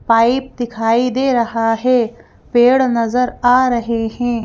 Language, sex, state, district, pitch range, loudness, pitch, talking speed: Hindi, female, Madhya Pradesh, Bhopal, 230-250 Hz, -15 LUFS, 240 Hz, 135 wpm